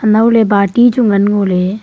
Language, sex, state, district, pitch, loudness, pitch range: Wancho, female, Arunachal Pradesh, Longding, 210 Hz, -11 LUFS, 200-225 Hz